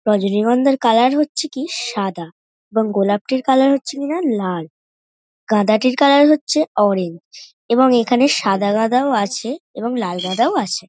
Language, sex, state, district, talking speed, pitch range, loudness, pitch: Bengali, female, West Bengal, North 24 Parganas, 150 wpm, 205-275 Hz, -17 LUFS, 240 Hz